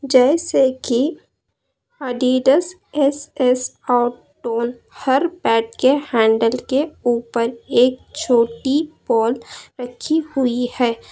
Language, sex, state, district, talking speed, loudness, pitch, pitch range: Hindi, female, Karnataka, Bangalore, 95 wpm, -19 LUFS, 255 Hz, 240-280 Hz